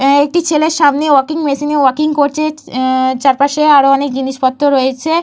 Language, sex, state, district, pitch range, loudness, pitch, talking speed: Bengali, female, Jharkhand, Jamtara, 270-305 Hz, -12 LUFS, 285 Hz, 160 wpm